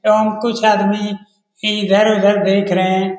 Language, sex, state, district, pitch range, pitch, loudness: Hindi, male, Bihar, Lakhisarai, 200-215 Hz, 205 Hz, -15 LUFS